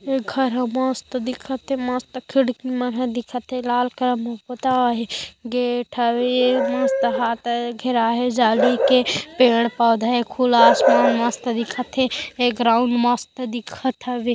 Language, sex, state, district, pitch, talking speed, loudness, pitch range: Hindi, female, Chhattisgarh, Korba, 245 Hz, 125 wpm, -20 LUFS, 240-255 Hz